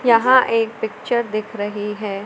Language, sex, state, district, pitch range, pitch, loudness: Hindi, female, Madhya Pradesh, Umaria, 210-235 Hz, 220 Hz, -19 LUFS